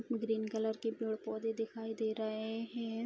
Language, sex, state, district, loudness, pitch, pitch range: Hindi, female, Bihar, Araria, -38 LUFS, 225 Hz, 220-225 Hz